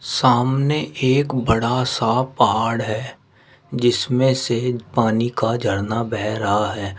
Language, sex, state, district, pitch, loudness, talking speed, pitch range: Hindi, male, Uttar Pradesh, Shamli, 120 Hz, -19 LUFS, 120 wpm, 110-130 Hz